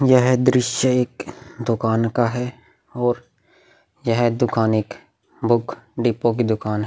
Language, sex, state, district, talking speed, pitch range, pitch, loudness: Hindi, male, Bihar, Vaishali, 140 wpm, 115-125 Hz, 120 Hz, -20 LUFS